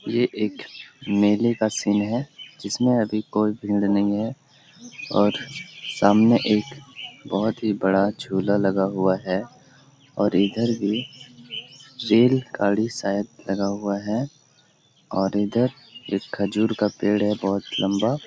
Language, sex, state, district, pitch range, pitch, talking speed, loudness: Hindi, male, Bihar, Lakhisarai, 100-130 Hz, 110 Hz, 135 wpm, -23 LUFS